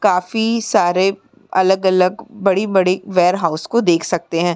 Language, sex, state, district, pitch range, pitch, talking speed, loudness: Hindi, female, Uttar Pradesh, Muzaffarnagar, 175-200 Hz, 190 Hz, 120 wpm, -16 LUFS